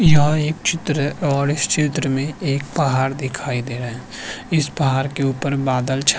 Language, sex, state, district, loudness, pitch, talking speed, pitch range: Hindi, male, Uttarakhand, Tehri Garhwal, -20 LUFS, 140 Hz, 205 wpm, 135-150 Hz